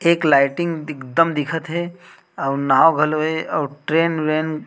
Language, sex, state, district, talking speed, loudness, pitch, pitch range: Chhattisgarhi, male, Chhattisgarh, Rajnandgaon, 155 wpm, -19 LUFS, 155 Hz, 150-165 Hz